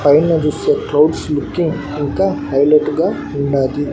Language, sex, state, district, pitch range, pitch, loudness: Telugu, male, Andhra Pradesh, Annamaya, 140-155 Hz, 145 Hz, -16 LUFS